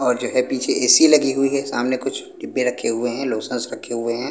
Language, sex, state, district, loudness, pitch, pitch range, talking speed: Hindi, male, Punjab, Pathankot, -19 LUFS, 125 Hz, 120-135 Hz, 265 wpm